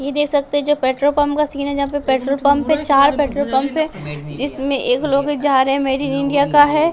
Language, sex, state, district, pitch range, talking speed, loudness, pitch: Hindi, male, Bihar, West Champaran, 275-290 Hz, 225 wpm, -17 LUFS, 280 Hz